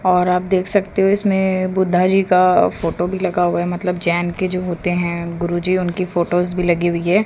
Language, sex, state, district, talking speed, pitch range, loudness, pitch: Hindi, female, Haryana, Jhajjar, 225 wpm, 175-185 Hz, -18 LUFS, 180 Hz